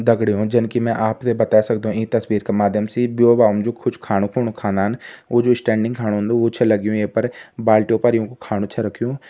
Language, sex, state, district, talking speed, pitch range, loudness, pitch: Garhwali, male, Uttarakhand, Tehri Garhwal, 225 wpm, 105-120 Hz, -19 LUFS, 110 Hz